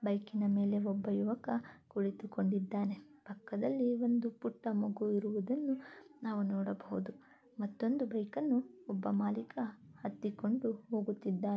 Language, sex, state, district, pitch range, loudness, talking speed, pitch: Kannada, female, Karnataka, Dakshina Kannada, 205-240 Hz, -37 LUFS, 105 wpm, 215 Hz